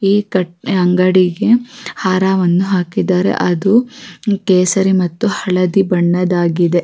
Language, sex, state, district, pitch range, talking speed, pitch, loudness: Kannada, female, Karnataka, Raichur, 180-200 Hz, 80 wpm, 185 Hz, -14 LUFS